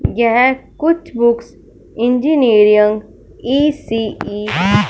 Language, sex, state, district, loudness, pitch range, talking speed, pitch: Hindi, male, Punjab, Fazilka, -14 LUFS, 220-265 Hz, 75 wpm, 235 Hz